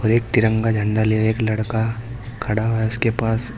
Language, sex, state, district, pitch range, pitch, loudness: Hindi, male, Uttar Pradesh, Saharanpur, 110-115 Hz, 110 Hz, -20 LUFS